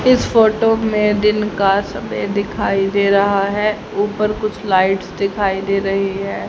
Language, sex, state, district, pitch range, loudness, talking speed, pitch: Hindi, male, Haryana, Charkhi Dadri, 195-210 Hz, -17 LUFS, 155 wpm, 200 Hz